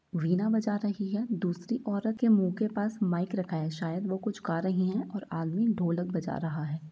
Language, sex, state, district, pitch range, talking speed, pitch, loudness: Hindi, female, Bihar, East Champaran, 175-215 Hz, 215 wpm, 190 Hz, -30 LUFS